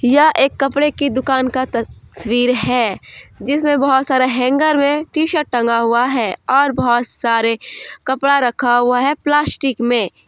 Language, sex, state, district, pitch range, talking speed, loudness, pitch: Hindi, female, Jharkhand, Deoghar, 240-285 Hz, 160 wpm, -16 LUFS, 260 Hz